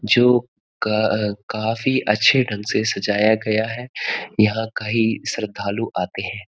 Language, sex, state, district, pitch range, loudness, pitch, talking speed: Hindi, male, Uttarakhand, Uttarkashi, 105-115 Hz, -20 LUFS, 110 Hz, 130 wpm